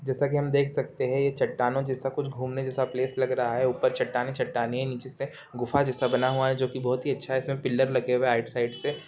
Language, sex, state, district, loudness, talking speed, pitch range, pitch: Hindi, male, Bihar, Saran, -27 LUFS, 265 wpm, 125-135 Hz, 130 Hz